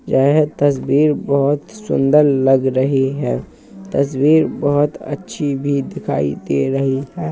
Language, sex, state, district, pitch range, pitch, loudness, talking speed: Hindi, male, Uttar Pradesh, Hamirpur, 130-145 Hz, 140 Hz, -17 LUFS, 130 wpm